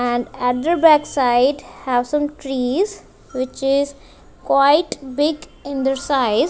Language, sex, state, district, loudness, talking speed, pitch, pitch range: English, female, Punjab, Kapurthala, -18 LUFS, 120 wpm, 275 Hz, 255-295 Hz